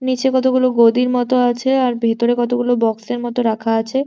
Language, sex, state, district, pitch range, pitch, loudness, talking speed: Bengali, female, West Bengal, Jhargram, 235-255 Hz, 245 Hz, -16 LUFS, 175 wpm